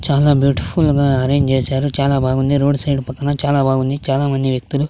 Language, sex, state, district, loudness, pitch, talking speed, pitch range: Telugu, male, Andhra Pradesh, Sri Satya Sai, -16 LUFS, 140 Hz, 170 wpm, 135-140 Hz